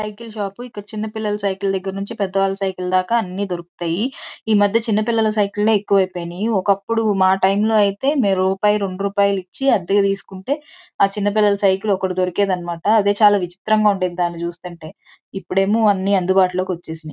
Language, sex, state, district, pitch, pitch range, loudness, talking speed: Telugu, female, Andhra Pradesh, Guntur, 200 Hz, 190-215 Hz, -19 LUFS, 170 wpm